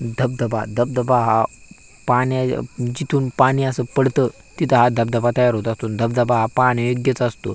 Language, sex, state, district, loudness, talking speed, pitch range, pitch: Marathi, male, Maharashtra, Aurangabad, -19 LUFS, 145 wpm, 115-130 Hz, 125 Hz